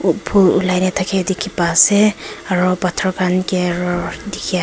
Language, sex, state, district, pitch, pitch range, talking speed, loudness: Nagamese, female, Nagaland, Kohima, 185 Hz, 180-190 Hz, 155 wpm, -16 LUFS